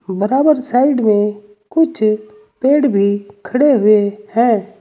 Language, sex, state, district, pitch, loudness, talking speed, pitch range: Hindi, male, Uttar Pradesh, Saharanpur, 215 Hz, -14 LUFS, 110 wpm, 210-265 Hz